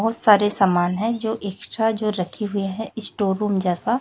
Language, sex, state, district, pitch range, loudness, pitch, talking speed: Hindi, female, Chhattisgarh, Raipur, 195-225 Hz, -21 LUFS, 210 Hz, 195 wpm